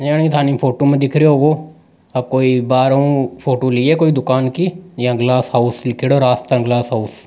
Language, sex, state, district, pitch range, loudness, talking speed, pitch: Rajasthani, male, Rajasthan, Nagaur, 125-145 Hz, -15 LUFS, 180 wpm, 130 Hz